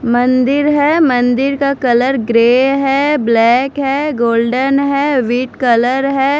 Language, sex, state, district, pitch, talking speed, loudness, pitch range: Hindi, female, Chandigarh, Chandigarh, 265 Hz, 130 wpm, -13 LUFS, 245-280 Hz